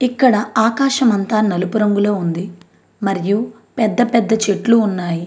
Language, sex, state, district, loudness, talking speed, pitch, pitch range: Telugu, female, Andhra Pradesh, Anantapur, -16 LUFS, 115 wpm, 215 Hz, 195-230 Hz